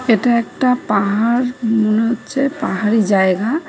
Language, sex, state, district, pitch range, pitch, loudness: Bengali, female, West Bengal, Cooch Behar, 215-250 Hz, 230 Hz, -16 LUFS